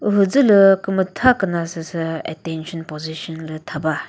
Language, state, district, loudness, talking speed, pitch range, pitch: Chakhesang, Nagaland, Dimapur, -19 LUFS, 115 wpm, 160-195 Hz, 165 Hz